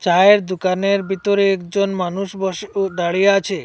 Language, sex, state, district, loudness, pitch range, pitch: Bengali, male, Assam, Hailakandi, -18 LUFS, 185-200 Hz, 195 Hz